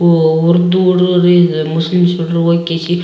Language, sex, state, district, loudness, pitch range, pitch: Kannada, male, Karnataka, Raichur, -12 LUFS, 165-175 Hz, 170 Hz